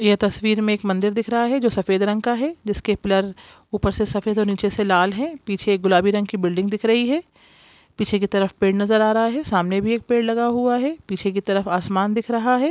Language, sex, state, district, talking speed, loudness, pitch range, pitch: Hindi, female, Bihar, Jamui, 255 wpm, -20 LUFS, 195-230 Hz, 210 Hz